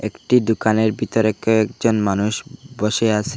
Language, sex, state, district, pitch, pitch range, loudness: Bengali, male, Assam, Hailakandi, 110 Hz, 105-115 Hz, -19 LUFS